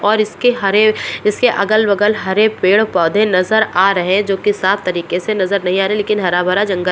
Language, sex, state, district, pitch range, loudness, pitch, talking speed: Hindi, female, Bihar, Purnia, 185-215 Hz, -14 LUFS, 200 Hz, 210 wpm